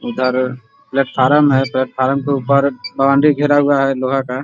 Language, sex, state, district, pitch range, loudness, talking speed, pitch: Hindi, male, Bihar, Muzaffarpur, 130-140 Hz, -15 LUFS, 190 wpm, 135 Hz